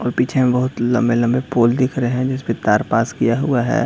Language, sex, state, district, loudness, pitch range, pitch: Hindi, male, Uttar Pradesh, Jalaun, -17 LUFS, 120-130 Hz, 125 Hz